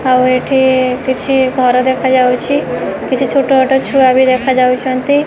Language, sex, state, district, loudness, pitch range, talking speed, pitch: Odia, female, Odisha, Khordha, -12 LUFS, 255-265 Hz, 125 wpm, 260 Hz